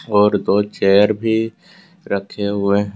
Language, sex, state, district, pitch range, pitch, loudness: Hindi, male, Jharkhand, Deoghar, 100-105 Hz, 105 Hz, -17 LUFS